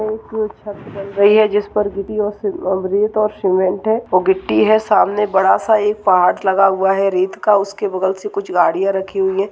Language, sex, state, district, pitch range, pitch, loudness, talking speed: Hindi, female, Uttarakhand, Tehri Garhwal, 190-210 Hz, 200 Hz, -16 LUFS, 210 wpm